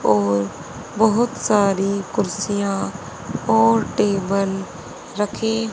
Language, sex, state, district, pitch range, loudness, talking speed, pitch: Hindi, male, Haryana, Jhajjar, 190-210 Hz, -20 LUFS, 75 wpm, 200 Hz